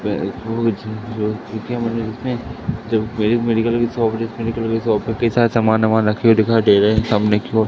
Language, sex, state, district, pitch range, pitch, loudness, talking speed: Hindi, male, Madhya Pradesh, Katni, 110-115 Hz, 115 Hz, -18 LUFS, 205 wpm